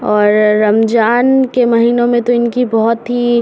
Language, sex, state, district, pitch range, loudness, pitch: Hindi, male, Bihar, Samastipur, 220-240 Hz, -12 LUFS, 235 Hz